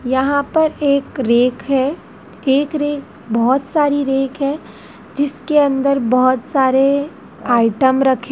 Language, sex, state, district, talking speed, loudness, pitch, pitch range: Hindi, female, Madhya Pradesh, Dhar, 125 wpm, -16 LUFS, 275 Hz, 260-285 Hz